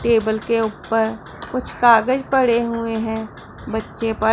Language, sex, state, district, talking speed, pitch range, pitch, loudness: Hindi, female, Punjab, Pathankot, 140 wpm, 220-235 Hz, 225 Hz, -19 LUFS